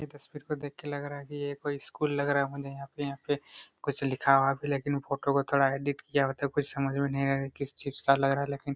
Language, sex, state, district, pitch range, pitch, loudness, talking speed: Hindi, male, Chhattisgarh, Raigarh, 140-145 Hz, 140 Hz, -30 LUFS, 285 wpm